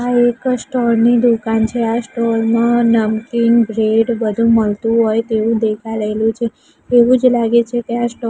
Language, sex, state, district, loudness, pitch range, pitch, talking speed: Gujarati, female, Gujarat, Gandhinagar, -15 LUFS, 225-240 Hz, 230 Hz, 190 wpm